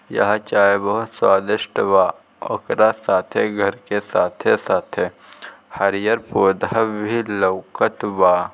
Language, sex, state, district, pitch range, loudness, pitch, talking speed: Bhojpuri, male, Bihar, Gopalganj, 100-110 Hz, -19 LUFS, 100 Hz, 105 wpm